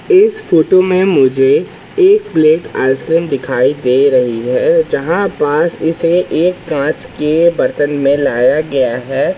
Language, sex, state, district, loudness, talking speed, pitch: Hindi, male, Madhya Pradesh, Katni, -12 LUFS, 140 wpm, 165 Hz